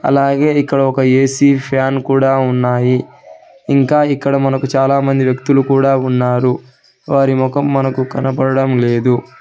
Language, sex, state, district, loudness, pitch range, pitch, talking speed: Telugu, male, Telangana, Hyderabad, -14 LUFS, 130-140 Hz, 135 Hz, 120 wpm